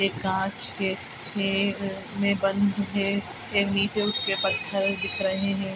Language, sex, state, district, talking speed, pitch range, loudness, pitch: Hindi, female, Bihar, Araria, 155 wpm, 195-200 Hz, -24 LUFS, 195 Hz